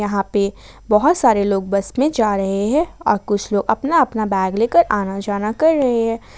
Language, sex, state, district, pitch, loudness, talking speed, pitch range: Hindi, female, Jharkhand, Ranchi, 210 Hz, -18 LUFS, 205 wpm, 200-245 Hz